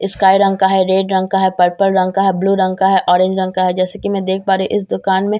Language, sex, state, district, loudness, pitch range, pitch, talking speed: Hindi, female, Bihar, Katihar, -14 LUFS, 185-195 Hz, 190 Hz, 345 wpm